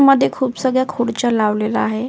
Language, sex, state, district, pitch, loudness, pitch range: Marathi, female, Maharashtra, Solapur, 240 Hz, -17 LUFS, 220-260 Hz